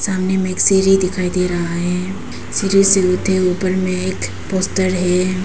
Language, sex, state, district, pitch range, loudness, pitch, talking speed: Hindi, female, Arunachal Pradesh, Papum Pare, 180-190 Hz, -16 LUFS, 185 Hz, 175 wpm